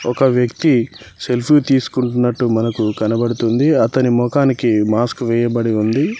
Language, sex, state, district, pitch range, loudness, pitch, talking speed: Telugu, male, Telangana, Mahabubabad, 115-125 Hz, -16 LUFS, 120 Hz, 105 wpm